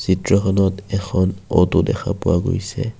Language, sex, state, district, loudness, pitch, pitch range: Assamese, male, Assam, Kamrup Metropolitan, -19 LUFS, 95 Hz, 90-100 Hz